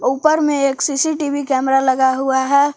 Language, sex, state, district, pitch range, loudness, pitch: Hindi, female, Jharkhand, Palamu, 265-290 Hz, -16 LUFS, 275 Hz